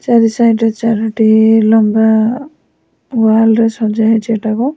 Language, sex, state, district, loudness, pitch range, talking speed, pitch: Odia, female, Odisha, Sambalpur, -11 LUFS, 220-230 Hz, 125 wpm, 225 Hz